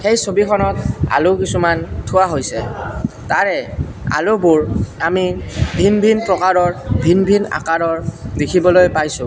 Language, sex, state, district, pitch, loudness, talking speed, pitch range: Assamese, male, Assam, Kamrup Metropolitan, 180 Hz, -16 LUFS, 110 wpm, 155-190 Hz